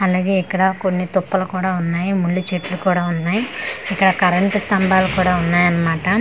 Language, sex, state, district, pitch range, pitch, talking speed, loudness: Telugu, female, Andhra Pradesh, Manyam, 180-190 Hz, 185 Hz, 175 wpm, -18 LUFS